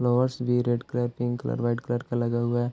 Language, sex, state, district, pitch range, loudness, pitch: Hindi, male, Bihar, Gopalganj, 120-125 Hz, -27 LUFS, 120 Hz